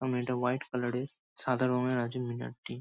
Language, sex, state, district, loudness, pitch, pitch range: Bengali, male, West Bengal, Kolkata, -33 LUFS, 125 Hz, 120-130 Hz